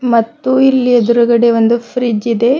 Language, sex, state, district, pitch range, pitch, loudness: Kannada, female, Karnataka, Bidar, 230-250 Hz, 235 Hz, -12 LUFS